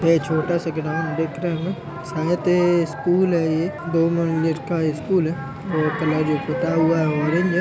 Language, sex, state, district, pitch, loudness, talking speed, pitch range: Hindi, male, Uttar Pradesh, Budaun, 165 Hz, -21 LUFS, 205 wpm, 160-170 Hz